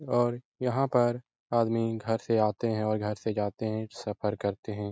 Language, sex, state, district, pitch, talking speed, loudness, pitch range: Hindi, male, Bihar, Lakhisarai, 110 Hz, 195 wpm, -30 LUFS, 105-120 Hz